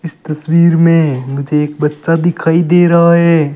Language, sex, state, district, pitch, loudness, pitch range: Hindi, male, Rajasthan, Bikaner, 165 Hz, -11 LUFS, 150-170 Hz